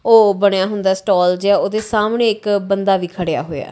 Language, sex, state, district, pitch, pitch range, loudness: Punjabi, female, Punjab, Kapurthala, 200 Hz, 190-210 Hz, -16 LUFS